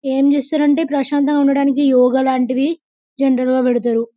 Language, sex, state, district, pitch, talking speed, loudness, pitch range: Telugu, female, Telangana, Karimnagar, 275 Hz, 160 wpm, -16 LUFS, 255-285 Hz